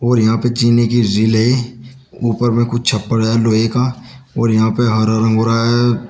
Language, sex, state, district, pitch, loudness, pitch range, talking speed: Hindi, male, Uttar Pradesh, Shamli, 120 Hz, -15 LUFS, 110-120 Hz, 215 wpm